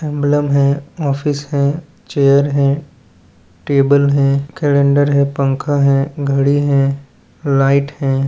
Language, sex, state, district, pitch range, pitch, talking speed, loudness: Hindi, male, Rajasthan, Nagaur, 140-145 Hz, 140 Hz, 115 wpm, -15 LUFS